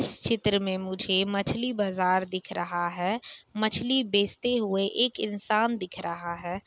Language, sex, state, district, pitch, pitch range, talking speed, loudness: Hindi, female, Bihar, Kishanganj, 200 Hz, 185-215 Hz, 155 wpm, -27 LUFS